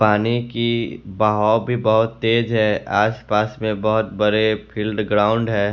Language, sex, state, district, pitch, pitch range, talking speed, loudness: Hindi, male, Bihar, West Champaran, 110 Hz, 105-115 Hz, 155 wpm, -19 LUFS